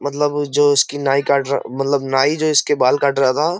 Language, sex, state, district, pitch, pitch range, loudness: Hindi, male, Uttar Pradesh, Jyotiba Phule Nagar, 140 Hz, 135-145 Hz, -16 LUFS